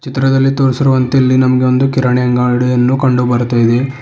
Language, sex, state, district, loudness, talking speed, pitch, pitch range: Kannada, male, Karnataka, Bidar, -12 LUFS, 135 wpm, 130 Hz, 125-135 Hz